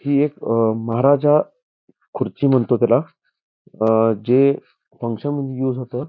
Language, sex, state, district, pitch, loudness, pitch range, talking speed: Marathi, male, Karnataka, Belgaum, 130 Hz, -19 LUFS, 115-140 Hz, 100 wpm